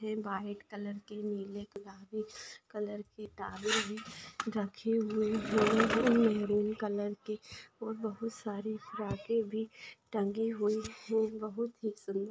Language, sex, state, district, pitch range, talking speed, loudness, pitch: Hindi, female, Maharashtra, Dhule, 205-220 Hz, 135 wpm, -35 LUFS, 215 Hz